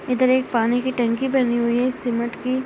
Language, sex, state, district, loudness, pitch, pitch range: Hindi, female, Bihar, Saharsa, -21 LUFS, 250 Hz, 235-255 Hz